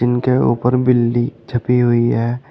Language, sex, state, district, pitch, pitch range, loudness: Hindi, male, Uttar Pradesh, Shamli, 120 Hz, 120-125 Hz, -16 LUFS